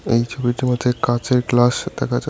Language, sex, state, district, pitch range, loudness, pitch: Bengali, male, West Bengal, Cooch Behar, 120-125 Hz, -19 LUFS, 120 Hz